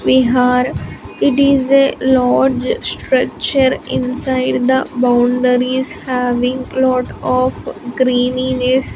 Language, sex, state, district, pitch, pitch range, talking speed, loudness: English, female, Andhra Pradesh, Sri Satya Sai, 255 Hz, 250-260 Hz, 85 wpm, -15 LUFS